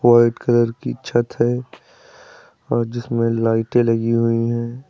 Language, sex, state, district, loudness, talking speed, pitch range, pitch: Hindi, male, Uttar Pradesh, Lucknow, -19 LUFS, 135 wpm, 115-125 Hz, 120 Hz